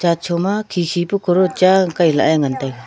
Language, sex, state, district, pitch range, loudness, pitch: Wancho, female, Arunachal Pradesh, Longding, 165-185 Hz, -16 LUFS, 175 Hz